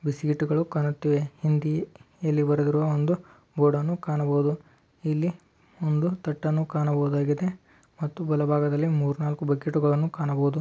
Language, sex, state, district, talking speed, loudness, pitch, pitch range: Kannada, male, Karnataka, Dharwad, 120 wpm, -26 LUFS, 150 Hz, 145-155 Hz